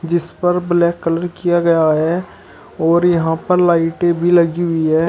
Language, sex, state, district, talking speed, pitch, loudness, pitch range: Hindi, male, Uttar Pradesh, Shamli, 175 wpm, 170 Hz, -15 LUFS, 165-175 Hz